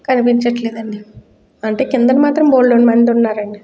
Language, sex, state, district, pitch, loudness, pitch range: Telugu, female, Andhra Pradesh, Guntur, 240 Hz, -13 LUFS, 225-255 Hz